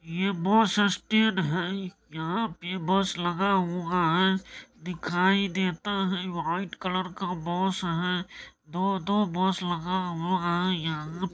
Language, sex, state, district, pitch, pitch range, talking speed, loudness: Maithili, male, Bihar, Supaul, 185 Hz, 175-195 Hz, 140 wpm, -27 LUFS